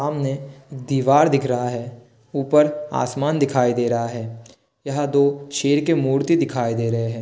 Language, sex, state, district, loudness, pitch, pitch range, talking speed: Hindi, male, Bihar, Kishanganj, -20 LUFS, 135 Hz, 120-140 Hz, 165 wpm